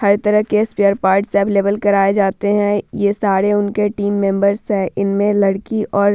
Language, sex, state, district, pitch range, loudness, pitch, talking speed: Hindi, female, Bihar, Vaishali, 200-205 Hz, -16 LUFS, 200 Hz, 185 wpm